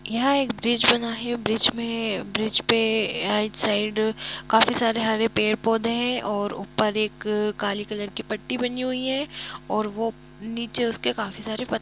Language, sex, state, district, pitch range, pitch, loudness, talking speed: Hindi, female, Jharkhand, Jamtara, 215-235 Hz, 225 Hz, -24 LUFS, 180 wpm